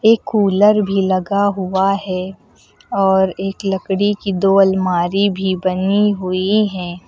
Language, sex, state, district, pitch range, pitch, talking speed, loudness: Hindi, female, Uttar Pradesh, Lucknow, 190-200 Hz, 195 Hz, 135 wpm, -16 LUFS